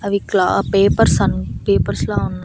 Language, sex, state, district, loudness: Telugu, female, Andhra Pradesh, Annamaya, -16 LUFS